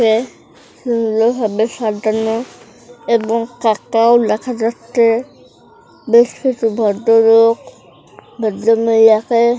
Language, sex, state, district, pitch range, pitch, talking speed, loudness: Bengali, female, West Bengal, Jhargram, 220-235 Hz, 230 Hz, 55 wpm, -14 LUFS